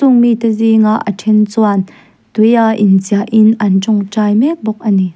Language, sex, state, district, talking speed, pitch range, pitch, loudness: Mizo, female, Mizoram, Aizawl, 185 wpm, 205-225 Hz, 215 Hz, -11 LUFS